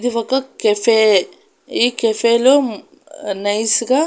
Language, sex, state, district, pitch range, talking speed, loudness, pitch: Telugu, female, Andhra Pradesh, Annamaya, 215-265 Hz, 135 wpm, -16 LUFS, 235 Hz